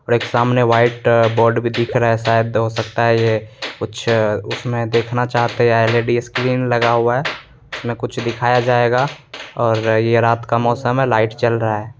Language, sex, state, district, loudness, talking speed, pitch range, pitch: Hindi, male, Bihar, Begusarai, -17 LUFS, 190 wpm, 115-120 Hz, 115 Hz